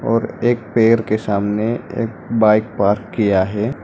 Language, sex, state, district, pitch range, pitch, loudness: Hindi, male, Arunachal Pradesh, Lower Dibang Valley, 105-115 Hz, 110 Hz, -17 LUFS